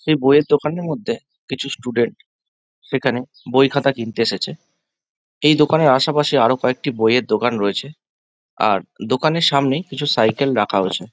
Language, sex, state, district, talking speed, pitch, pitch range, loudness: Bengali, male, West Bengal, Jhargram, 140 wpm, 135 Hz, 120-150 Hz, -18 LUFS